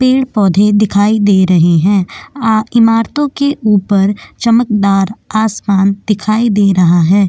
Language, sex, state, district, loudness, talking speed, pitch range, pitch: Hindi, female, Goa, North and South Goa, -11 LUFS, 115 wpm, 195-225 Hz, 205 Hz